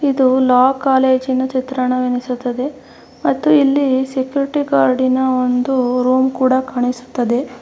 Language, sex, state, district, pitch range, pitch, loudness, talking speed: Kannada, female, Karnataka, Mysore, 250-265 Hz, 260 Hz, -16 LUFS, 95 wpm